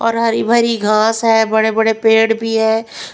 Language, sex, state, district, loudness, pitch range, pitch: Hindi, female, Punjab, Pathankot, -14 LUFS, 220-230 Hz, 225 Hz